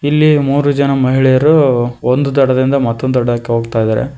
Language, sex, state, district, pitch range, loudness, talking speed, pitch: Kannada, male, Karnataka, Koppal, 120-140 Hz, -12 LUFS, 145 wpm, 130 Hz